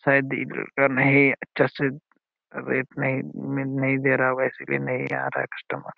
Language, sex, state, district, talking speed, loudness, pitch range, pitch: Hindi, male, Jharkhand, Sahebganj, 190 wpm, -23 LUFS, 130-140 Hz, 135 Hz